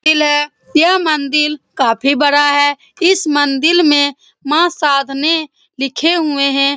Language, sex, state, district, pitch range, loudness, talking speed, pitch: Hindi, female, Bihar, Saran, 280-320 Hz, -13 LUFS, 135 wpm, 295 Hz